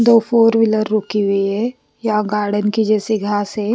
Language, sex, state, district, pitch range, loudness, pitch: Hindi, female, Bihar, West Champaran, 210-225 Hz, -17 LUFS, 215 Hz